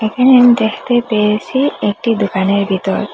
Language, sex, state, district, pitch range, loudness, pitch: Bengali, female, Assam, Hailakandi, 205-245 Hz, -13 LUFS, 220 Hz